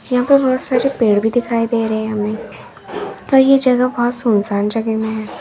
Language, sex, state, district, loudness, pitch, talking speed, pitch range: Hindi, female, Uttar Pradesh, Lalitpur, -15 LUFS, 235 Hz, 210 wpm, 220-255 Hz